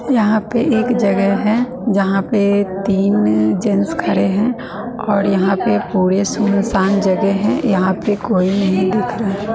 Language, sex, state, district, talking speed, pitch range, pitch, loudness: Hindi, female, Bihar, West Champaran, 150 wpm, 195-215 Hz, 200 Hz, -16 LUFS